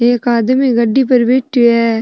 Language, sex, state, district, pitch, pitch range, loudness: Rajasthani, female, Rajasthan, Nagaur, 240 Hz, 235-255 Hz, -12 LUFS